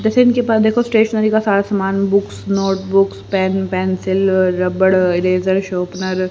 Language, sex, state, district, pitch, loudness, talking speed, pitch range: Hindi, male, Haryana, Rohtak, 195 Hz, -16 LUFS, 150 wpm, 185-205 Hz